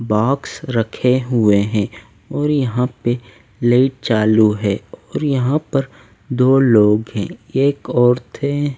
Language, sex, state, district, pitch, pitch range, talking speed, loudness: Hindi, male, Delhi, New Delhi, 120 Hz, 110-135 Hz, 130 wpm, -17 LUFS